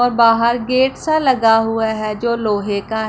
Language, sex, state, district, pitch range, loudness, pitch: Hindi, female, Punjab, Pathankot, 220-245 Hz, -16 LUFS, 230 Hz